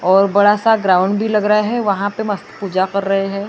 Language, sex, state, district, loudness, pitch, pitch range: Hindi, female, Maharashtra, Gondia, -16 LUFS, 200 Hz, 195-210 Hz